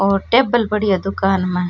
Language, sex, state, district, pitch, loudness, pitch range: Rajasthani, female, Rajasthan, Churu, 195 Hz, -17 LUFS, 195-210 Hz